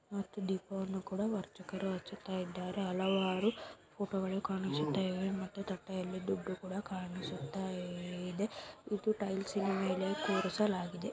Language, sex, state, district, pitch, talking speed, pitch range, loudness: Kannada, female, Karnataka, Dharwad, 190 Hz, 95 wpm, 185-200 Hz, -38 LUFS